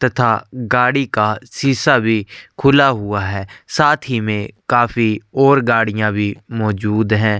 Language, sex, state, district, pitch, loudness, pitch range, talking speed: Hindi, male, Chhattisgarh, Korba, 115 Hz, -16 LUFS, 105-130 Hz, 140 wpm